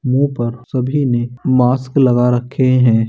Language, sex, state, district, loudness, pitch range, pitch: Hindi, male, Uttar Pradesh, Muzaffarnagar, -15 LUFS, 120-130 Hz, 125 Hz